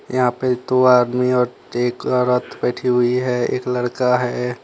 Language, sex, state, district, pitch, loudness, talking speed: Hindi, male, Jharkhand, Deoghar, 125 Hz, -18 LUFS, 170 wpm